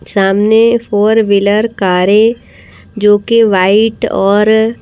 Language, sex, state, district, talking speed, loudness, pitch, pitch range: Hindi, female, Madhya Pradesh, Bhopal, 100 wpm, -10 LUFS, 210 Hz, 200-225 Hz